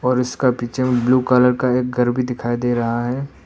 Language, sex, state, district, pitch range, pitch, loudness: Hindi, male, Arunachal Pradesh, Papum Pare, 120-125 Hz, 125 Hz, -18 LUFS